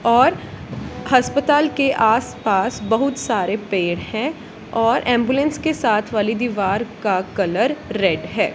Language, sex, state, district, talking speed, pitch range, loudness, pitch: Hindi, female, Punjab, Kapurthala, 135 wpm, 210-270 Hz, -19 LUFS, 230 Hz